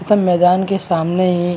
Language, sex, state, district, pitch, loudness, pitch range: Hindi, male, Maharashtra, Chandrapur, 180 Hz, -15 LUFS, 175-185 Hz